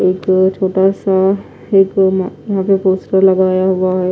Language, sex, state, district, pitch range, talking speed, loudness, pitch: Hindi, female, Odisha, Nuapada, 185-195 Hz, 145 wpm, -14 LUFS, 190 Hz